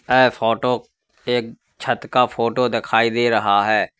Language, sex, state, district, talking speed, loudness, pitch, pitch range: Hindi, male, Uttar Pradesh, Lalitpur, 150 wpm, -19 LUFS, 120 Hz, 115-125 Hz